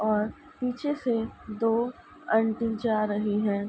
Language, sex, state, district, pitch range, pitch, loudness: Hindi, female, Uttar Pradesh, Ghazipur, 215-240 Hz, 225 Hz, -28 LUFS